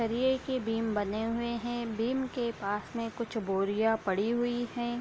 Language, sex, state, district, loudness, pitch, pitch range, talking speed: Hindi, female, Bihar, Darbhanga, -32 LUFS, 230 Hz, 220-240 Hz, 180 wpm